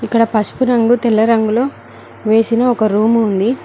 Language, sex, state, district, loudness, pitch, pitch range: Telugu, female, Telangana, Mahabubabad, -14 LUFS, 230 Hz, 220-240 Hz